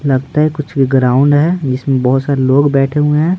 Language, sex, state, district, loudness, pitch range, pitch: Hindi, male, Bihar, Patna, -13 LUFS, 135-150 Hz, 140 Hz